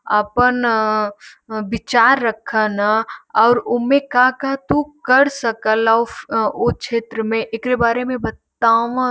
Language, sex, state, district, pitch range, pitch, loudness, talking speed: Bhojpuri, female, Uttar Pradesh, Varanasi, 220-250 Hz, 230 Hz, -17 LUFS, 130 wpm